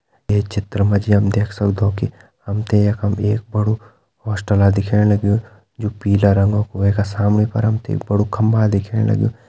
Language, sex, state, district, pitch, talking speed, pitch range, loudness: Hindi, male, Uttarakhand, Tehri Garhwal, 105 Hz, 195 wpm, 100-110 Hz, -18 LUFS